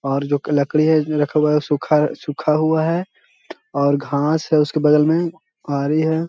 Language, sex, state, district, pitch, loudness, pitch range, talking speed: Hindi, male, Bihar, Jahanabad, 150 Hz, -18 LUFS, 145-160 Hz, 170 wpm